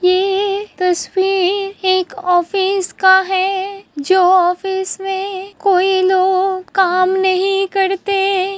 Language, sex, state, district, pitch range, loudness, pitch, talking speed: Hindi, female, Uttar Pradesh, Hamirpur, 370-390 Hz, -15 LUFS, 380 Hz, 105 wpm